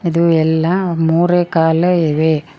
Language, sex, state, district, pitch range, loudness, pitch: Kannada, female, Karnataka, Koppal, 160-175 Hz, -14 LUFS, 165 Hz